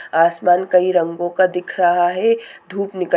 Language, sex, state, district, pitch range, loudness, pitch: Hindi, female, Bihar, Bhagalpur, 175-190 Hz, -17 LUFS, 180 Hz